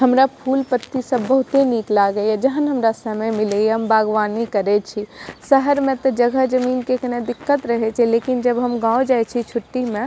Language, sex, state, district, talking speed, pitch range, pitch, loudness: Maithili, female, Bihar, Madhepura, 200 wpm, 220-260 Hz, 245 Hz, -18 LUFS